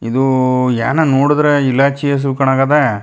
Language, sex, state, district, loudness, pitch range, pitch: Kannada, male, Karnataka, Chamarajanagar, -13 LUFS, 130-145 Hz, 135 Hz